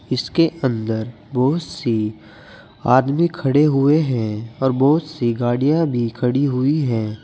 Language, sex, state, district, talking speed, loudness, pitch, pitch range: Hindi, male, Uttar Pradesh, Saharanpur, 135 wpm, -19 LUFS, 130 Hz, 115-145 Hz